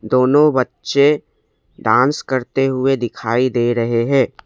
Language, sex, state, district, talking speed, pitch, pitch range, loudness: Hindi, male, Assam, Kamrup Metropolitan, 120 wpm, 130 Hz, 120-135 Hz, -16 LUFS